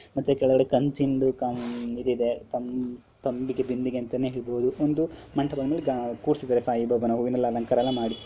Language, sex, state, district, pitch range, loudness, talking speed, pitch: Kannada, male, Karnataka, Dharwad, 120-130 Hz, -27 LUFS, 125 wpm, 125 Hz